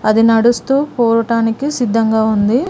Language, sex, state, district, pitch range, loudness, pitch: Telugu, female, Telangana, Mahabubabad, 225-245 Hz, -14 LUFS, 230 Hz